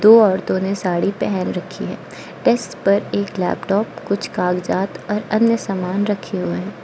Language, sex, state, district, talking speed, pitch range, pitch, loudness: Hindi, female, Arunachal Pradesh, Lower Dibang Valley, 165 wpm, 185-210 Hz, 200 Hz, -19 LUFS